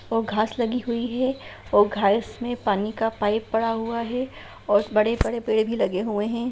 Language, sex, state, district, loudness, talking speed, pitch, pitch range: Hindi, female, Bihar, Sitamarhi, -24 LUFS, 195 wpm, 225 Hz, 215-235 Hz